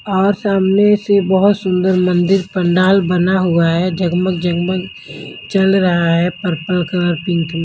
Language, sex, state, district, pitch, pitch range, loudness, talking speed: Hindi, female, Haryana, Jhajjar, 185 Hz, 175-195 Hz, -15 LUFS, 150 wpm